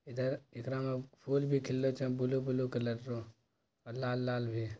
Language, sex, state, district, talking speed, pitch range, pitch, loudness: Maithili, male, Bihar, Bhagalpur, 160 wpm, 120-130 Hz, 130 Hz, -36 LUFS